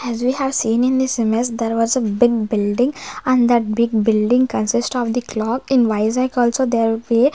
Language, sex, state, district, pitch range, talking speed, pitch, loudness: English, female, Maharashtra, Gondia, 225-255 Hz, 205 wpm, 235 Hz, -18 LUFS